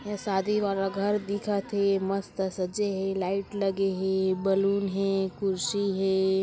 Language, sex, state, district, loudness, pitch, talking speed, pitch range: Chhattisgarhi, female, Chhattisgarh, Kabirdham, -28 LUFS, 195 Hz, 150 wpm, 190-200 Hz